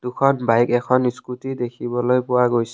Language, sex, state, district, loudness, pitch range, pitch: Assamese, male, Assam, Kamrup Metropolitan, -20 LUFS, 120-125 Hz, 125 Hz